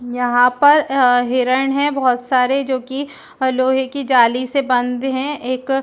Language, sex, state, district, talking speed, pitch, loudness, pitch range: Hindi, female, Chhattisgarh, Bastar, 165 wpm, 260 Hz, -16 LUFS, 250-275 Hz